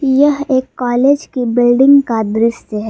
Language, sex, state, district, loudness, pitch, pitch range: Hindi, female, Jharkhand, Palamu, -13 LUFS, 255 Hz, 235-275 Hz